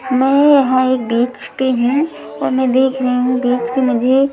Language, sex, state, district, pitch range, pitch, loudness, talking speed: Hindi, female, Maharashtra, Mumbai Suburban, 250-265 Hz, 255 Hz, -15 LUFS, 195 wpm